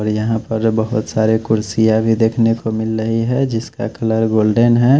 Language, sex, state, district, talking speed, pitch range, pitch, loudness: Hindi, male, Chhattisgarh, Raipur, 190 wpm, 110-115 Hz, 110 Hz, -16 LUFS